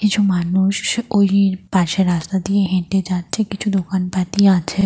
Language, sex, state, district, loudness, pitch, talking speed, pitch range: Bengali, female, Jharkhand, Jamtara, -18 LUFS, 190 Hz, 135 wpm, 185-200 Hz